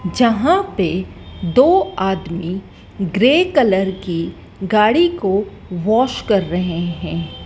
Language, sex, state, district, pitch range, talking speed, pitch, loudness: Hindi, female, Madhya Pradesh, Dhar, 180-230 Hz, 105 wpm, 195 Hz, -17 LUFS